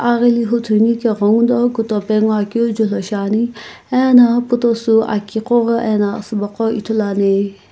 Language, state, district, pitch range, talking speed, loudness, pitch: Sumi, Nagaland, Kohima, 210-235 Hz, 130 wpm, -15 LUFS, 225 Hz